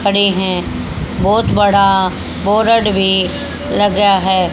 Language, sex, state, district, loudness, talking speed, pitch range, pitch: Hindi, female, Haryana, Charkhi Dadri, -14 LUFS, 105 wpm, 190-205 Hz, 195 Hz